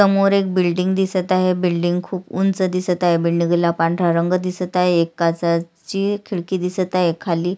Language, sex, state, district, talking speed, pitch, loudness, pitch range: Marathi, female, Maharashtra, Sindhudurg, 180 wpm, 180 Hz, -19 LUFS, 170-185 Hz